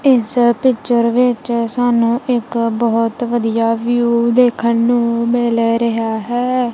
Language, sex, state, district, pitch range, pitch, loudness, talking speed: Punjabi, female, Punjab, Kapurthala, 230-245 Hz, 235 Hz, -15 LUFS, 115 wpm